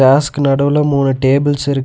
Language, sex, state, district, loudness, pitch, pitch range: Tamil, male, Tamil Nadu, Nilgiris, -13 LUFS, 140 Hz, 135-145 Hz